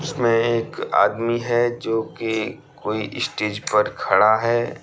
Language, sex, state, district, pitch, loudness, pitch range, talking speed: Hindi, male, Bihar, Bhagalpur, 115 Hz, -21 LUFS, 110-120 Hz, 125 wpm